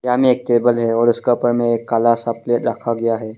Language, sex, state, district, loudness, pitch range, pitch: Hindi, male, Arunachal Pradesh, Longding, -17 LUFS, 115-120 Hz, 120 Hz